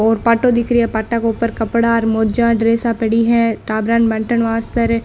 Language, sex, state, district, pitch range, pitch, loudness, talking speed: Marwari, female, Rajasthan, Nagaur, 225-235 Hz, 230 Hz, -16 LUFS, 225 wpm